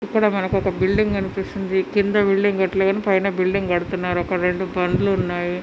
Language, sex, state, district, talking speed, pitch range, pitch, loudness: Telugu, female, Telangana, Nalgonda, 160 wpm, 185-200 Hz, 190 Hz, -20 LUFS